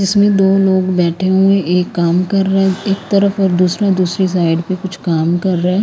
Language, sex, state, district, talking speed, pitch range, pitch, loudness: Hindi, female, Haryana, Rohtak, 225 wpm, 180-195 Hz, 190 Hz, -14 LUFS